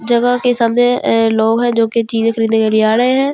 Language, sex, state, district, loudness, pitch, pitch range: Hindi, female, Delhi, New Delhi, -13 LUFS, 230 Hz, 225-245 Hz